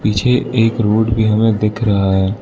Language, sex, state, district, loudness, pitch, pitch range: Hindi, male, Arunachal Pradesh, Lower Dibang Valley, -15 LUFS, 110 Hz, 105-115 Hz